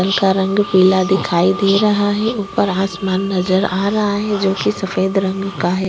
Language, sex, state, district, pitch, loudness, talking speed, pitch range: Hindi, female, Uttar Pradesh, Jyotiba Phule Nagar, 195 Hz, -16 LUFS, 185 wpm, 190-200 Hz